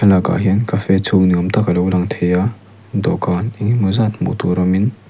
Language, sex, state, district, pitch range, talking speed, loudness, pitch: Mizo, male, Mizoram, Aizawl, 90-105 Hz, 225 wpm, -16 LUFS, 95 Hz